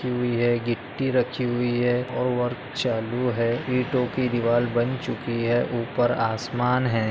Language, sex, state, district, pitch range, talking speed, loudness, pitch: Hindi, male, Maharashtra, Nagpur, 120-125 Hz, 145 wpm, -24 LUFS, 120 Hz